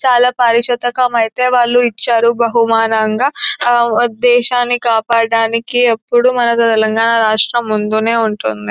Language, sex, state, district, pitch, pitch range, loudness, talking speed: Telugu, female, Telangana, Nalgonda, 235 Hz, 225-245 Hz, -12 LUFS, 105 wpm